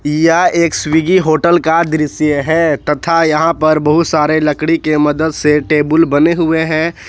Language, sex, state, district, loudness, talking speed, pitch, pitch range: Hindi, male, Jharkhand, Ranchi, -12 LUFS, 170 wpm, 160 Hz, 150-165 Hz